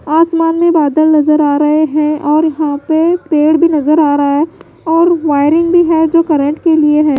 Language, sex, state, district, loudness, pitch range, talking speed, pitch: Hindi, female, Bihar, West Champaran, -11 LUFS, 300-330 Hz, 210 wpm, 310 Hz